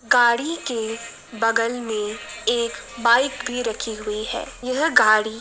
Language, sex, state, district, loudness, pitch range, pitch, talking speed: Hindi, female, Uttar Pradesh, Jalaun, -21 LUFS, 220-250 Hz, 235 Hz, 145 wpm